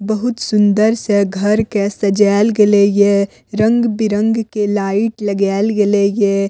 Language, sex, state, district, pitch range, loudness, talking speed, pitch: Maithili, female, Bihar, Madhepura, 200-215 Hz, -14 LUFS, 130 wpm, 205 Hz